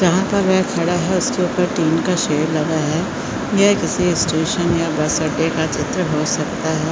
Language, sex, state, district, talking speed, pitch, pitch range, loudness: Hindi, female, Chhattisgarh, Korba, 200 wpm, 170 Hz, 160-185 Hz, -18 LUFS